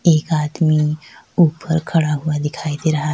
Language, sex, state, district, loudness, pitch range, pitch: Urdu, female, Bihar, Saharsa, -18 LUFS, 150-160 Hz, 155 Hz